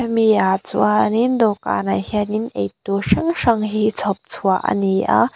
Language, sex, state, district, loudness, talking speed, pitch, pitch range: Mizo, female, Mizoram, Aizawl, -18 LUFS, 145 wpm, 200 Hz, 190-220 Hz